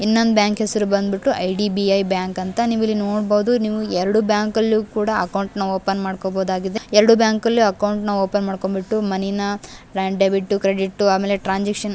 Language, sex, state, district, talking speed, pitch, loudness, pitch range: Kannada, female, Karnataka, Gulbarga, 165 wpm, 205 Hz, -19 LUFS, 195-215 Hz